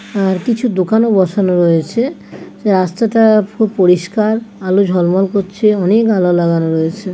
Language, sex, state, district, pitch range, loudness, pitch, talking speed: Bengali, female, West Bengal, Paschim Medinipur, 180-220 Hz, -13 LUFS, 195 Hz, 135 wpm